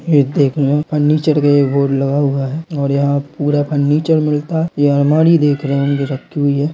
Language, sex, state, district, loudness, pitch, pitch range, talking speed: Angika, male, Bihar, Samastipur, -15 LUFS, 145 Hz, 140-150 Hz, 185 wpm